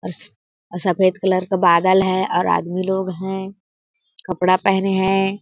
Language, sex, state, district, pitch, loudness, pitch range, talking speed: Hindi, female, Chhattisgarh, Balrampur, 190 Hz, -18 LUFS, 185-190 Hz, 155 wpm